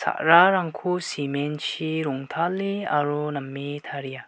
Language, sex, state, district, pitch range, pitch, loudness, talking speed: Garo, male, Meghalaya, West Garo Hills, 140-170 Hz, 150 Hz, -24 LUFS, 85 wpm